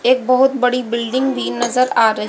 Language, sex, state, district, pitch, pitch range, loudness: Hindi, female, Haryana, Jhajjar, 250 Hz, 235-255 Hz, -16 LUFS